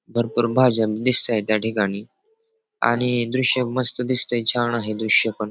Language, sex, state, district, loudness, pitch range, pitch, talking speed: Marathi, male, Maharashtra, Pune, -19 LUFS, 110-125 Hz, 120 Hz, 155 wpm